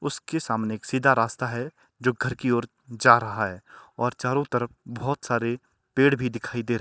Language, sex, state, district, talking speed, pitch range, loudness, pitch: Hindi, male, Himachal Pradesh, Shimla, 200 wpm, 115-130 Hz, -25 LUFS, 120 Hz